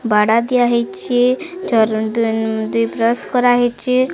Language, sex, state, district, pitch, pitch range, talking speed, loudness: Odia, female, Odisha, Sambalpur, 235 Hz, 225-250 Hz, 85 wpm, -16 LUFS